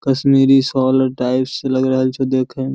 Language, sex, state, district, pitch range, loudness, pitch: Angika, male, Bihar, Bhagalpur, 130-135 Hz, -16 LUFS, 130 Hz